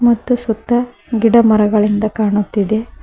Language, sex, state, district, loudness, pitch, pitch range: Kannada, female, Karnataka, Koppal, -15 LUFS, 225 Hz, 215-235 Hz